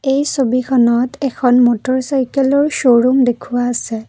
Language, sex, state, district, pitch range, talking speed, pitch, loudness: Assamese, female, Assam, Kamrup Metropolitan, 245-270 Hz, 115 wpm, 255 Hz, -14 LUFS